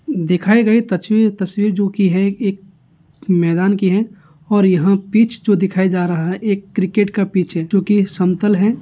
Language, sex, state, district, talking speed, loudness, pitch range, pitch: Hindi, male, Bihar, Gaya, 190 wpm, -16 LUFS, 180-210 Hz, 195 Hz